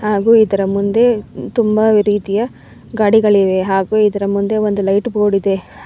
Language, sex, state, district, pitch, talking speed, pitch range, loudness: Kannada, female, Karnataka, Bangalore, 205 Hz, 135 wpm, 195-215 Hz, -14 LUFS